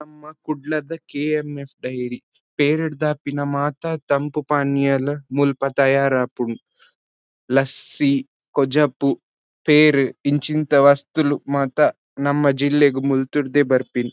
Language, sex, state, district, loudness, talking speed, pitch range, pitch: Tulu, male, Karnataka, Dakshina Kannada, -20 LUFS, 95 wpm, 135-150 Hz, 140 Hz